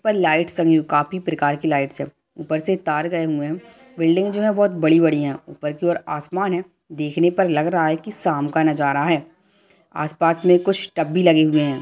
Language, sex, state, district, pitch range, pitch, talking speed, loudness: Hindi, male, Bihar, Kishanganj, 155-180 Hz, 165 Hz, 250 wpm, -20 LUFS